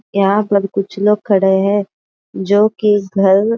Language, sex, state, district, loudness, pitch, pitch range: Hindi, female, Maharashtra, Aurangabad, -14 LUFS, 200 Hz, 195-210 Hz